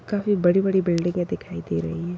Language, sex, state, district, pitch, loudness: Kumaoni, female, Uttarakhand, Tehri Garhwal, 175 Hz, -23 LUFS